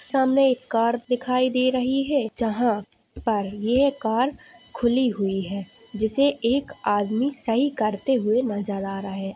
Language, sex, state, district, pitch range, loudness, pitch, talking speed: Hindi, female, Chhattisgarh, Jashpur, 210-260 Hz, -23 LUFS, 235 Hz, 160 wpm